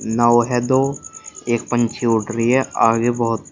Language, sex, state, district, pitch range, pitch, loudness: Hindi, male, Uttar Pradesh, Shamli, 115-125 Hz, 120 Hz, -18 LUFS